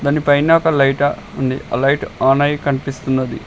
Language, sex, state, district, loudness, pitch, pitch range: Telugu, male, Telangana, Mahabubabad, -16 LUFS, 140 Hz, 135-145 Hz